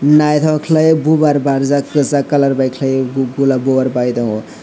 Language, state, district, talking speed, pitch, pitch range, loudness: Kokborok, Tripura, West Tripura, 195 wpm, 140 Hz, 130-150 Hz, -14 LUFS